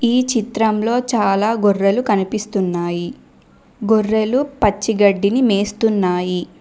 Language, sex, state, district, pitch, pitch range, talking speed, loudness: Telugu, female, Telangana, Mahabubabad, 215 Hz, 195-225 Hz, 80 wpm, -17 LUFS